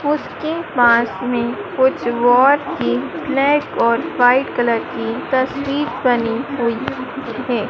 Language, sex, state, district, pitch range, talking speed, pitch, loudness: Hindi, female, Madhya Pradesh, Dhar, 235-285 Hz, 115 wpm, 250 Hz, -17 LUFS